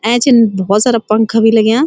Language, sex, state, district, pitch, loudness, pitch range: Garhwali, female, Uttarakhand, Uttarkashi, 225 Hz, -11 LUFS, 215-240 Hz